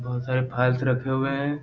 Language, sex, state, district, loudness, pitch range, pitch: Hindi, male, Bihar, Samastipur, -25 LUFS, 125-135 Hz, 130 Hz